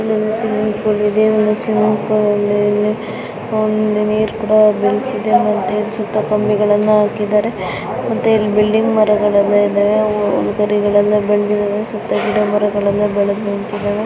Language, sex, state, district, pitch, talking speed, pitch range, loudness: Kannada, female, Karnataka, Raichur, 210 Hz, 60 wpm, 205-215 Hz, -15 LUFS